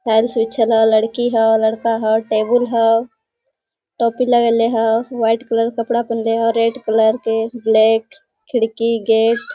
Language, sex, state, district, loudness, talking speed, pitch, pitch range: Hindi, female, Jharkhand, Sahebganj, -16 LUFS, 130 wpm, 230 Hz, 225-235 Hz